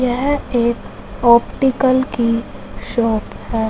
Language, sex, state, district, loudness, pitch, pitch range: Hindi, male, Punjab, Fazilka, -17 LUFS, 240 Hz, 230-260 Hz